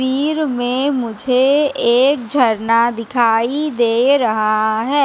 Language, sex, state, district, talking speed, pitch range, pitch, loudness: Hindi, female, Madhya Pradesh, Katni, 105 wpm, 230-275 Hz, 245 Hz, -15 LUFS